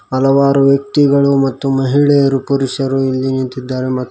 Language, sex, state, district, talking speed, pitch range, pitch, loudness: Kannada, male, Karnataka, Koppal, 130 wpm, 130-140 Hz, 135 Hz, -13 LUFS